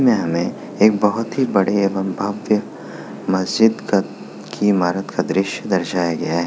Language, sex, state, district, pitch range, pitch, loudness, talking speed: Hindi, male, Bihar, Kishanganj, 95-105 Hz, 100 Hz, -19 LUFS, 155 wpm